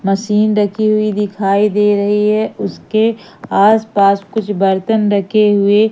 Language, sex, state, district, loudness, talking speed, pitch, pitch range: Hindi, female, Madhya Pradesh, Umaria, -14 LUFS, 130 wpm, 210 Hz, 200-215 Hz